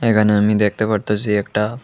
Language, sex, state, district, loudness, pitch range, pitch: Bengali, male, Tripura, West Tripura, -17 LUFS, 105-110 Hz, 105 Hz